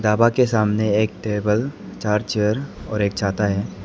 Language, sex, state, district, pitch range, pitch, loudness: Hindi, male, Arunachal Pradesh, Lower Dibang Valley, 105-110 Hz, 105 Hz, -21 LUFS